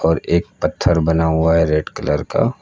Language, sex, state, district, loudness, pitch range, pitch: Hindi, male, Uttar Pradesh, Lucknow, -17 LUFS, 80-85 Hz, 80 Hz